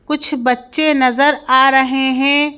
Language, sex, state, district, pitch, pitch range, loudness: Hindi, female, Madhya Pradesh, Bhopal, 270 Hz, 260-290 Hz, -12 LUFS